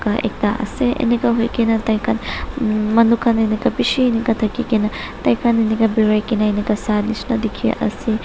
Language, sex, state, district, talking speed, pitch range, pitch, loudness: Nagamese, female, Nagaland, Dimapur, 175 wpm, 215-235 Hz, 225 Hz, -18 LUFS